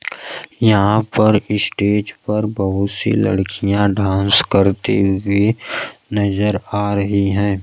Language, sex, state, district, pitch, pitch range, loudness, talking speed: Hindi, male, Bihar, Kaimur, 100 Hz, 100-105 Hz, -16 LUFS, 110 wpm